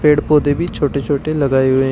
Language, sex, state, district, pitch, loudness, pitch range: Hindi, male, Uttar Pradesh, Shamli, 145 Hz, -16 LUFS, 140-150 Hz